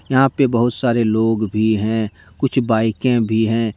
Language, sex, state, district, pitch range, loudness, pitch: Hindi, male, Jharkhand, Deoghar, 110-120 Hz, -18 LUFS, 115 Hz